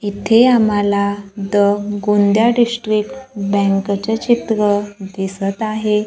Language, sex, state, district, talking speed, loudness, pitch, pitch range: Marathi, female, Maharashtra, Gondia, 100 wpm, -16 LUFS, 205 Hz, 200-220 Hz